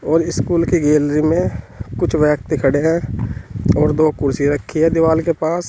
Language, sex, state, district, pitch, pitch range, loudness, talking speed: Hindi, male, Uttar Pradesh, Saharanpur, 150 Hz, 130-160 Hz, -17 LUFS, 180 wpm